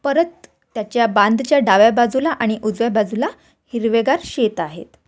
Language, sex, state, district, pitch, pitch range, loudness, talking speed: Marathi, female, Maharashtra, Aurangabad, 230 Hz, 215-270 Hz, -17 LUFS, 130 wpm